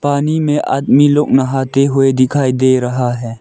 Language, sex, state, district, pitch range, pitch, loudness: Hindi, male, Arunachal Pradesh, Lower Dibang Valley, 130-145 Hz, 135 Hz, -13 LUFS